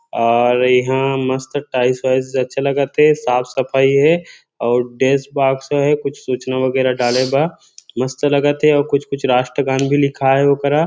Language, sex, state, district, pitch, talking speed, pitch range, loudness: Chhattisgarhi, male, Chhattisgarh, Rajnandgaon, 135 Hz, 165 wpm, 130-140 Hz, -16 LUFS